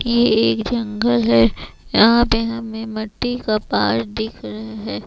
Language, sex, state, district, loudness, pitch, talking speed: Hindi, female, Chhattisgarh, Raipur, -18 LUFS, 210 Hz, 140 wpm